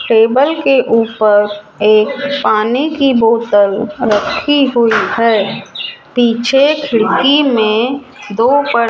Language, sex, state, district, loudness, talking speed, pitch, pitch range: Hindi, male, Rajasthan, Jaipur, -12 LUFS, 110 wpm, 235 Hz, 215-275 Hz